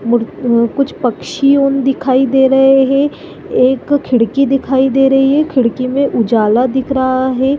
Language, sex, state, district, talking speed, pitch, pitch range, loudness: Hindi, female, Chhattisgarh, Bilaspur, 175 wpm, 265 Hz, 250-275 Hz, -12 LUFS